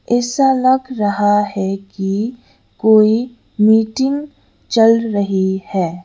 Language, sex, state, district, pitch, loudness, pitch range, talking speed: Hindi, female, Sikkim, Gangtok, 220 Hz, -15 LUFS, 200-245 Hz, 100 wpm